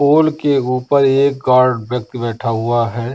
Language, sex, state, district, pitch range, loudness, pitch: Hindi, male, Bihar, Samastipur, 120-140 Hz, -15 LUFS, 125 Hz